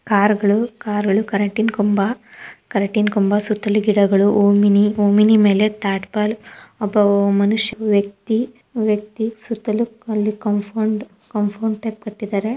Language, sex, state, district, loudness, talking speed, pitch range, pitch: Kannada, female, Karnataka, Dharwad, -18 LUFS, 115 wpm, 205-220 Hz, 210 Hz